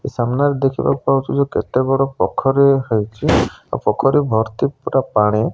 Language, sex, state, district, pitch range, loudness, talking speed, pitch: Odia, male, Odisha, Malkangiri, 110-135 Hz, -17 LUFS, 130 wpm, 135 Hz